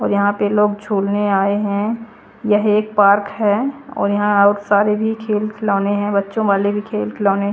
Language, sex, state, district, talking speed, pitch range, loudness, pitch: Hindi, female, Haryana, Charkhi Dadri, 200 wpm, 200-210 Hz, -17 LUFS, 205 Hz